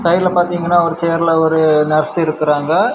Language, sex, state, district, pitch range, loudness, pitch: Tamil, male, Tamil Nadu, Kanyakumari, 155-175 Hz, -14 LUFS, 165 Hz